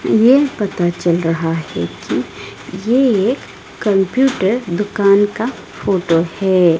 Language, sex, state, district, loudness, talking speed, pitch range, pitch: Hindi, female, Odisha, Malkangiri, -16 LUFS, 115 wpm, 170-220 Hz, 195 Hz